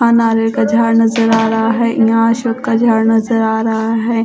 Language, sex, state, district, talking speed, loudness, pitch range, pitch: Hindi, female, Odisha, Khordha, 210 wpm, -13 LUFS, 225-230 Hz, 225 Hz